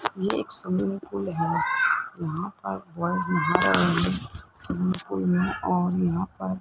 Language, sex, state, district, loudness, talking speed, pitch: Hindi, male, Rajasthan, Jaipur, -26 LUFS, 165 wpm, 175 Hz